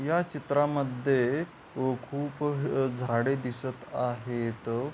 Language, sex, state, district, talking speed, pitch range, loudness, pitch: Marathi, male, Maharashtra, Pune, 75 wpm, 120-145 Hz, -30 LUFS, 130 Hz